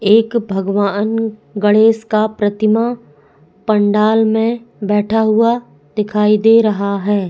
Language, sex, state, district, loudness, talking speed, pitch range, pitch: Hindi, female, Goa, North and South Goa, -15 LUFS, 105 wpm, 205-225 Hz, 215 Hz